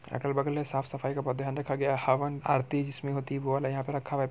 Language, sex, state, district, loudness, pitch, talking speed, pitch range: Hindi, male, Bihar, Muzaffarpur, -31 LUFS, 140 Hz, 295 wpm, 135-140 Hz